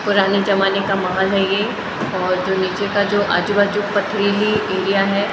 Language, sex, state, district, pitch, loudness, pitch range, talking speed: Hindi, female, Maharashtra, Gondia, 200 Hz, -18 LUFS, 190-205 Hz, 180 wpm